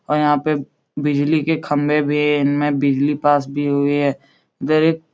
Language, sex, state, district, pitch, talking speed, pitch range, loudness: Hindi, male, Uttar Pradesh, Etah, 145 Hz, 200 wpm, 145-150 Hz, -18 LUFS